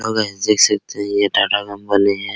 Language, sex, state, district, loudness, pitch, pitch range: Hindi, male, Bihar, Araria, -16 LUFS, 100 Hz, 100-105 Hz